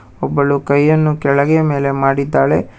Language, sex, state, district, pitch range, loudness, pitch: Kannada, male, Karnataka, Bangalore, 135-150 Hz, -14 LUFS, 140 Hz